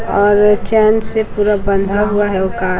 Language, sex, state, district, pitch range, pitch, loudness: Hindi, female, Chhattisgarh, Raipur, 200-210 Hz, 205 Hz, -14 LUFS